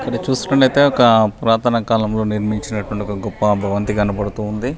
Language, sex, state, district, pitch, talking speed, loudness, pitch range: Telugu, male, Telangana, Nalgonda, 105 Hz, 150 wpm, -17 LUFS, 105-120 Hz